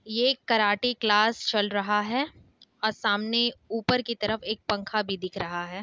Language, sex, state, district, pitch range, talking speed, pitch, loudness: Hindi, female, Bihar, Kishanganj, 205-235 Hz, 185 wpm, 220 Hz, -26 LUFS